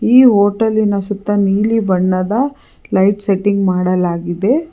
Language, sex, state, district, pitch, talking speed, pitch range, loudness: Kannada, female, Karnataka, Bangalore, 200 Hz, 100 wpm, 185-220 Hz, -14 LUFS